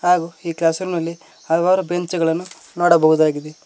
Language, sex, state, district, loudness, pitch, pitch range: Kannada, male, Karnataka, Koppal, -18 LUFS, 170 Hz, 165-175 Hz